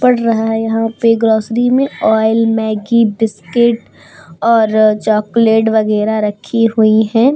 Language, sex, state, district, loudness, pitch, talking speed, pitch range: Hindi, female, Uttar Pradesh, Hamirpur, -13 LUFS, 225 Hz, 130 wpm, 215-230 Hz